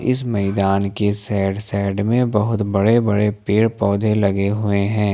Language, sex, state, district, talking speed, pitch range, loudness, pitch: Hindi, male, Jharkhand, Ranchi, 165 wpm, 100-110 Hz, -18 LUFS, 105 Hz